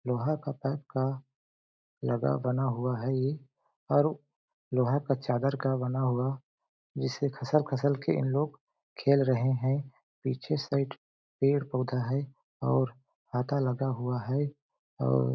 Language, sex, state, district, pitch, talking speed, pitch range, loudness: Hindi, male, Chhattisgarh, Balrampur, 135 Hz, 135 wpm, 125-140 Hz, -30 LUFS